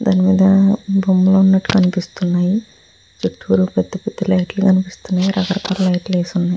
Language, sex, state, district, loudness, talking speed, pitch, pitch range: Telugu, female, Andhra Pradesh, Guntur, -16 LUFS, 120 wpm, 190 Hz, 180-195 Hz